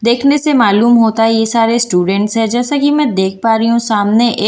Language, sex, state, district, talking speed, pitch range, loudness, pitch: Hindi, female, Bihar, Katihar, 240 wpm, 220-240 Hz, -12 LUFS, 230 Hz